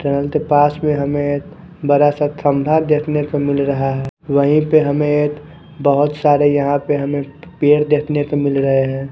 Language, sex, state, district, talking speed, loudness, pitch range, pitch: Hindi, male, Haryana, Charkhi Dadri, 190 wpm, -16 LUFS, 140-150 Hz, 145 Hz